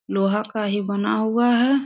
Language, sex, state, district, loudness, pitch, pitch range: Hindi, female, Jharkhand, Sahebganj, -21 LUFS, 215 Hz, 205-240 Hz